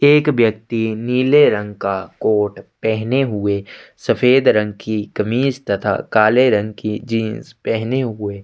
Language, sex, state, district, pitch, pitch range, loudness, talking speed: Hindi, male, Chhattisgarh, Sukma, 110 Hz, 105-125 Hz, -17 LUFS, 135 wpm